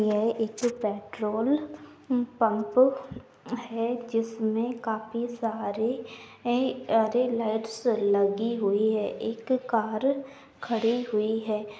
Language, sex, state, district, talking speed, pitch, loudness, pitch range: Hindi, female, Uttar Pradesh, Etah, 95 wpm, 230 Hz, -28 LUFS, 220-245 Hz